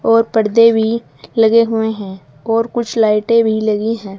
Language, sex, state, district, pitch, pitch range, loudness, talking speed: Hindi, female, Uttar Pradesh, Saharanpur, 225 Hz, 215-230 Hz, -14 LUFS, 170 wpm